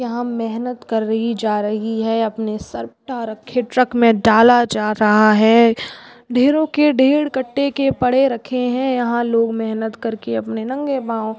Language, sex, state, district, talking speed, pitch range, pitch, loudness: Hindi, female, Rajasthan, Churu, 165 wpm, 220-250 Hz, 235 Hz, -17 LUFS